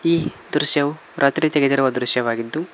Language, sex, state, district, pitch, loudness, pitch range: Kannada, male, Karnataka, Koppal, 140 Hz, -19 LUFS, 125-155 Hz